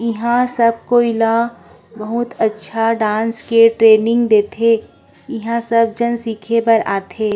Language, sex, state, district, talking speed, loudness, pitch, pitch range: Chhattisgarhi, female, Chhattisgarh, Korba, 140 wpm, -15 LUFS, 230 Hz, 220-235 Hz